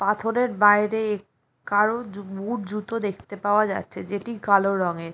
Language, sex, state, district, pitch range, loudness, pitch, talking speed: Bengali, female, West Bengal, Jalpaiguri, 200-220 Hz, -23 LUFS, 205 Hz, 150 wpm